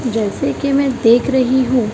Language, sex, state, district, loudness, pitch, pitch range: Hindi, female, Maharashtra, Mumbai Suburban, -15 LUFS, 255 Hz, 230-265 Hz